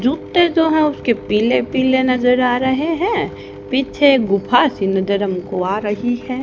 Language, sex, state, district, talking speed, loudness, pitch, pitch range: Hindi, female, Haryana, Jhajjar, 170 wpm, -16 LUFS, 255 Hz, 210-285 Hz